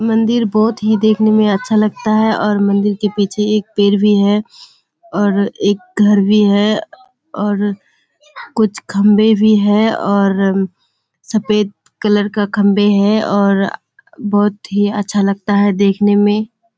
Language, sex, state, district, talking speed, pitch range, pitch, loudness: Hindi, female, Bihar, Kishanganj, 145 wpm, 205-215 Hz, 210 Hz, -14 LUFS